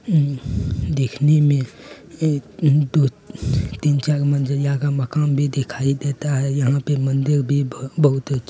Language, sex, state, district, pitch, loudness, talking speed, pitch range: Hindi, male, Bihar, Lakhisarai, 140 Hz, -20 LUFS, 140 wpm, 135-145 Hz